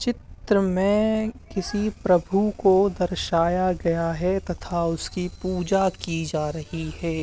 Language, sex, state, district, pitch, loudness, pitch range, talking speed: Hindi, male, Uttar Pradesh, Hamirpur, 185 Hz, -24 LUFS, 170-195 Hz, 125 wpm